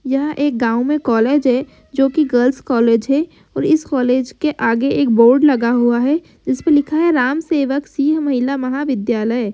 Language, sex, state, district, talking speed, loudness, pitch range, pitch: Hindi, female, Bihar, Sitamarhi, 180 wpm, -16 LUFS, 245-295 Hz, 270 Hz